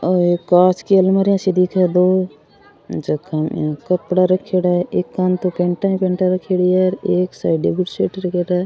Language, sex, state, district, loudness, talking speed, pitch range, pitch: Rajasthani, female, Rajasthan, Churu, -17 LUFS, 185 wpm, 180-185 Hz, 185 Hz